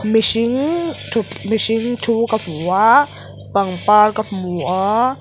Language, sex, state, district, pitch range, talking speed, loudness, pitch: Mizo, female, Mizoram, Aizawl, 195-230 Hz, 125 wpm, -17 LUFS, 220 Hz